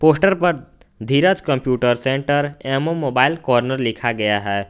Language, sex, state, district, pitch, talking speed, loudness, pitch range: Hindi, male, Jharkhand, Garhwa, 135 Hz, 140 wpm, -18 LUFS, 120-150 Hz